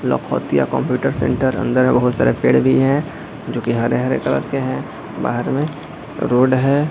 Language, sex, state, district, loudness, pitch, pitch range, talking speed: Hindi, male, Jharkhand, Jamtara, -18 LUFS, 130 Hz, 125-140 Hz, 150 wpm